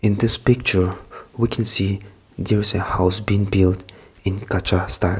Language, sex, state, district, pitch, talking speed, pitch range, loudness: English, male, Nagaland, Kohima, 100 Hz, 160 wpm, 95-105 Hz, -18 LUFS